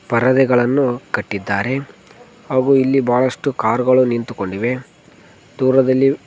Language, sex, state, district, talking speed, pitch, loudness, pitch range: Kannada, male, Karnataka, Koppal, 75 wpm, 130 Hz, -17 LUFS, 120-135 Hz